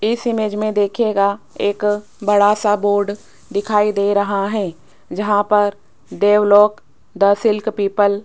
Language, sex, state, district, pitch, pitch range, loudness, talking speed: Hindi, female, Rajasthan, Jaipur, 205 Hz, 200-210 Hz, -17 LUFS, 140 wpm